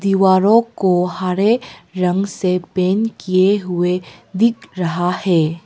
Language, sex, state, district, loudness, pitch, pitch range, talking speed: Hindi, female, Arunachal Pradesh, Papum Pare, -17 LUFS, 185 Hz, 180-195 Hz, 115 wpm